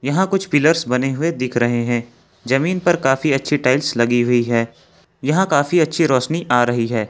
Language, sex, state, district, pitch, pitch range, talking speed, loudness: Hindi, male, Jharkhand, Ranchi, 135 Hz, 120-155 Hz, 195 wpm, -17 LUFS